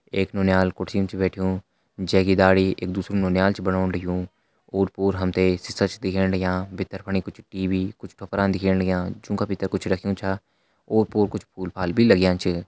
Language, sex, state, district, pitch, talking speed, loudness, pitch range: Hindi, male, Uttarakhand, Uttarkashi, 95 Hz, 210 wpm, -23 LUFS, 95-100 Hz